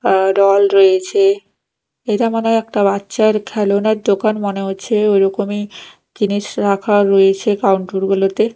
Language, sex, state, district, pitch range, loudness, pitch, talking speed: Bengali, female, Odisha, Nuapada, 195-215 Hz, -15 LUFS, 205 Hz, 125 wpm